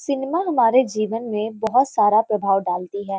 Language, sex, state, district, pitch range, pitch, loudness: Hindi, female, Uttar Pradesh, Varanasi, 205-260 Hz, 220 Hz, -20 LUFS